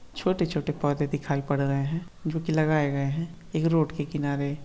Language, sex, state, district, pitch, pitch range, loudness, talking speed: Hindi, male, Uttar Pradesh, Hamirpur, 150 Hz, 140-165 Hz, -27 LUFS, 195 wpm